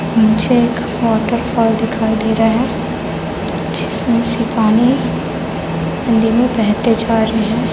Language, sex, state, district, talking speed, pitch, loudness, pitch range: Hindi, female, Chhattisgarh, Raipur, 130 wpm, 225 Hz, -15 LUFS, 220-235 Hz